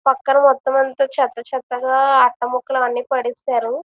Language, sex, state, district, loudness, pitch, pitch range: Telugu, female, Andhra Pradesh, Visakhapatnam, -18 LUFS, 260 Hz, 245-270 Hz